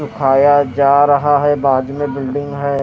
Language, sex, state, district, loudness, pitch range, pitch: Hindi, male, Haryana, Rohtak, -14 LUFS, 140-145 Hz, 140 Hz